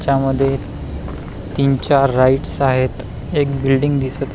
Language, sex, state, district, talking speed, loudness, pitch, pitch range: Marathi, male, Maharashtra, Pune, 140 wpm, -17 LUFS, 135 Hz, 130-135 Hz